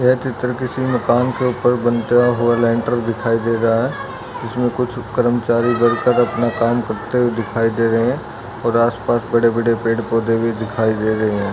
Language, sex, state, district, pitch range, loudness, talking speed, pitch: Hindi, male, Maharashtra, Solapur, 115-120 Hz, -18 LUFS, 180 wpm, 120 Hz